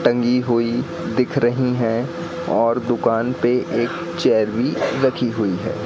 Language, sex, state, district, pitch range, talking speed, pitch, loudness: Hindi, male, Madhya Pradesh, Katni, 115-125 Hz, 145 wpm, 120 Hz, -20 LUFS